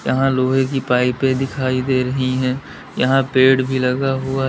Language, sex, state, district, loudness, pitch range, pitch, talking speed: Hindi, male, Uttar Pradesh, Lalitpur, -18 LUFS, 130-135 Hz, 130 Hz, 175 wpm